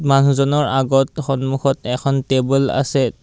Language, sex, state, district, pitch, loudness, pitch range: Assamese, male, Assam, Kamrup Metropolitan, 135 Hz, -17 LUFS, 135-140 Hz